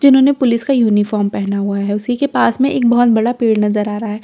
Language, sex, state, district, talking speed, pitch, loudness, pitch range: Hindi, female, Bihar, Katihar, 310 wpm, 225 Hz, -14 LUFS, 210-250 Hz